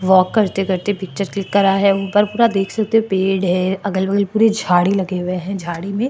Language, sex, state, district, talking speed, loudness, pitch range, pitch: Hindi, female, Maharashtra, Chandrapur, 235 wpm, -17 LUFS, 185-205 Hz, 195 Hz